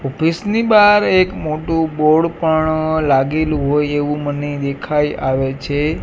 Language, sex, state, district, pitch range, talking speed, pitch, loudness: Gujarati, male, Gujarat, Gandhinagar, 145-160 Hz, 140 wpm, 155 Hz, -16 LUFS